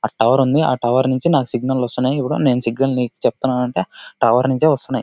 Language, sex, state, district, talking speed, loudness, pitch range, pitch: Telugu, male, Karnataka, Bellary, 225 wpm, -17 LUFS, 125-135 Hz, 130 Hz